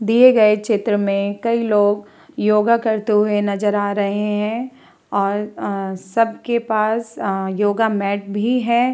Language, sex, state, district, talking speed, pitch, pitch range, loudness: Hindi, female, Bihar, Vaishali, 140 wpm, 210 Hz, 205-225 Hz, -18 LUFS